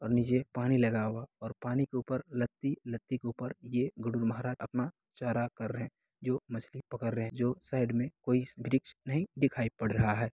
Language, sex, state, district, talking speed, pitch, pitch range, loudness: Hindi, male, Bihar, Begusarai, 195 wpm, 125 Hz, 115-130 Hz, -34 LUFS